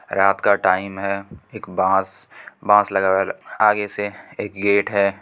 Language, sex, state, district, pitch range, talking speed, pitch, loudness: Hindi, female, Bihar, Supaul, 95-105 Hz, 160 wpm, 100 Hz, -19 LUFS